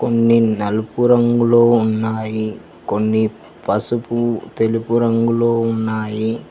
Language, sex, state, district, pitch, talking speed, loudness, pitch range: Telugu, male, Telangana, Hyderabad, 115 Hz, 75 wpm, -17 LUFS, 110-115 Hz